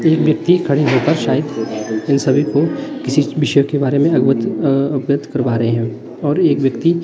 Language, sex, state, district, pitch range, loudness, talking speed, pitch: Hindi, male, Himachal Pradesh, Shimla, 125-150 Hz, -16 LUFS, 185 wpm, 140 Hz